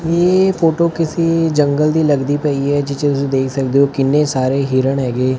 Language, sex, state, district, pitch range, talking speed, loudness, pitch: Punjabi, male, Punjab, Fazilka, 135-160 Hz, 190 wpm, -15 LUFS, 145 Hz